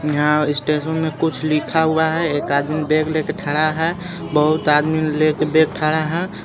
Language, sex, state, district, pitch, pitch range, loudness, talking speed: Hindi, male, Jharkhand, Garhwa, 155 Hz, 150-160 Hz, -18 LUFS, 175 wpm